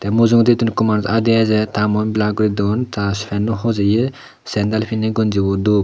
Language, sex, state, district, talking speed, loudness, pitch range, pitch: Chakma, male, Tripura, Dhalai, 165 wpm, -17 LUFS, 105-115 Hz, 110 Hz